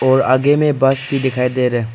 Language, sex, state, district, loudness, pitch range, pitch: Hindi, male, Arunachal Pradesh, Papum Pare, -15 LUFS, 125-135 Hz, 130 Hz